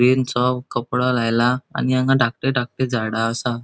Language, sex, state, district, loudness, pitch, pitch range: Konkani, male, Goa, North and South Goa, -20 LUFS, 125 Hz, 120-130 Hz